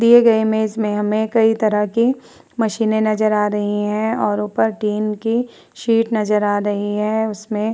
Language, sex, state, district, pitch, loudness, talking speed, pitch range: Hindi, female, Uttar Pradesh, Varanasi, 215 Hz, -18 LUFS, 185 wpm, 210-225 Hz